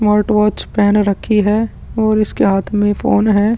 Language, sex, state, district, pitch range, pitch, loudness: Hindi, male, Chhattisgarh, Sukma, 205-215 Hz, 210 Hz, -14 LUFS